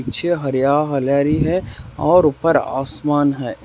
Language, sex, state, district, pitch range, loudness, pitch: Hindi, male, Rajasthan, Nagaur, 135-150 Hz, -17 LUFS, 140 Hz